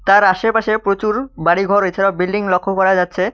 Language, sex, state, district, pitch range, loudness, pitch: Bengali, male, West Bengal, Cooch Behar, 185-215 Hz, -16 LUFS, 195 Hz